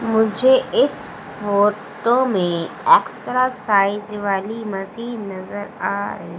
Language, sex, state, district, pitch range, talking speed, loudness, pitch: Hindi, female, Madhya Pradesh, Umaria, 200-240 Hz, 95 wpm, -19 LUFS, 210 Hz